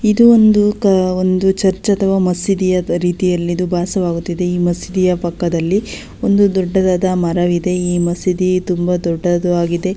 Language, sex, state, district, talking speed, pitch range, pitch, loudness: Kannada, female, Karnataka, Belgaum, 120 wpm, 175-190 Hz, 180 Hz, -15 LUFS